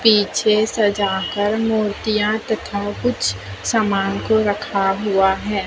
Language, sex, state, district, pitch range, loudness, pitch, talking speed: Hindi, female, Chhattisgarh, Raipur, 195-215 Hz, -19 LUFS, 205 Hz, 115 wpm